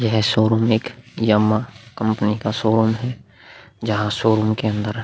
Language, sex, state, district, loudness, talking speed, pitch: Hindi, male, Bihar, Vaishali, -19 LUFS, 155 wpm, 110 Hz